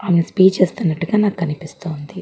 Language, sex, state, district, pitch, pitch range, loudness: Telugu, female, Andhra Pradesh, Guntur, 175 Hz, 165-190 Hz, -18 LUFS